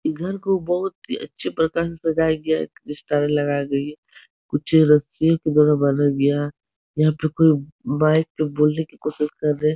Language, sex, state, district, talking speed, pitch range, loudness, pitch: Hindi, male, Uttar Pradesh, Etah, 195 wpm, 145-160 Hz, -21 LUFS, 155 Hz